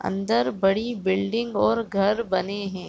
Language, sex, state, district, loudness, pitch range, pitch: Hindi, female, Chhattisgarh, Raigarh, -24 LUFS, 195-225 Hz, 200 Hz